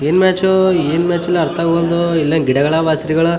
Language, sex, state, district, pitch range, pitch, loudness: Kannada, male, Karnataka, Raichur, 160-175 Hz, 170 Hz, -14 LUFS